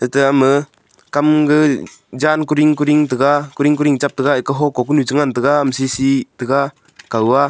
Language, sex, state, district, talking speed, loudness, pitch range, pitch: Wancho, male, Arunachal Pradesh, Longding, 210 wpm, -15 LUFS, 135-150 Hz, 140 Hz